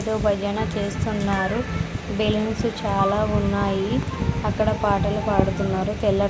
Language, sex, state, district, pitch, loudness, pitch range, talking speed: Telugu, female, Andhra Pradesh, Sri Satya Sai, 205 Hz, -23 LUFS, 200-210 Hz, 95 wpm